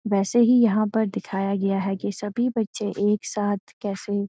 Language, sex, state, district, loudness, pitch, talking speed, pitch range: Hindi, female, Uttarakhand, Uttarkashi, -23 LUFS, 205 Hz, 195 wpm, 200-220 Hz